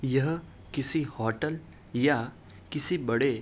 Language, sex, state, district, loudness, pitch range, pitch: Hindi, male, Uttar Pradesh, Hamirpur, -30 LUFS, 115-160 Hz, 140 Hz